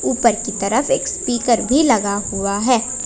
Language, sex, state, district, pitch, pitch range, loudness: Hindi, female, Jharkhand, Palamu, 235 Hz, 205-250 Hz, -17 LUFS